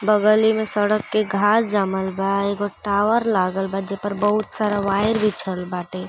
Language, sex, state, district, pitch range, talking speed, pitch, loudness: Bhojpuri, female, Uttar Pradesh, Gorakhpur, 195-215 Hz, 165 wpm, 205 Hz, -20 LUFS